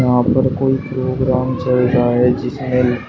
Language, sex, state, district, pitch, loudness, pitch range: Hindi, male, Uttar Pradesh, Shamli, 125 Hz, -16 LUFS, 125-130 Hz